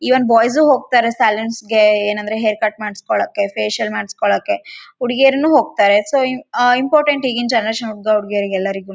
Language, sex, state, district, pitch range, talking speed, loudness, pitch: Kannada, female, Karnataka, Raichur, 210-255 Hz, 120 wpm, -16 LUFS, 220 Hz